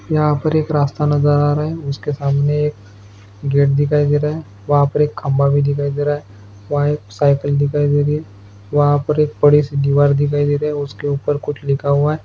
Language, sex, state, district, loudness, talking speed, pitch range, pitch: Hindi, male, Bihar, Araria, -17 LUFS, 235 wpm, 140-150 Hz, 145 Hz